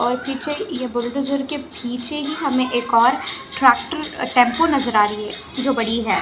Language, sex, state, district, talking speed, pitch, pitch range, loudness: Hindi, female, Haryana, Charkhi Dadri, 195 wpm, 255 Hz, 240-285 Hz, -20 LUFS